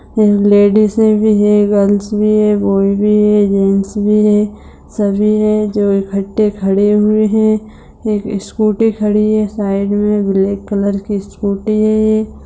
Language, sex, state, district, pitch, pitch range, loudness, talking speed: Hindi, female, Bihar, Begusarai, 210 Hz, 200-215 Hz, -13 LUFS, 145 wpm